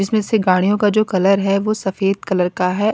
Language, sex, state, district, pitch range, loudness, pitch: Hindi, female, Punjab, Kapurthala, 190-210 Hz, -17 LUFS, 195 Hz